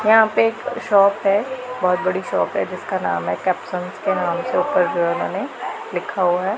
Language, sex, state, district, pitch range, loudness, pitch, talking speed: Hindi, female, Punjab, Pathankot, 185-225 Hz, -20 LUFS, 200 Hz, 200 wpm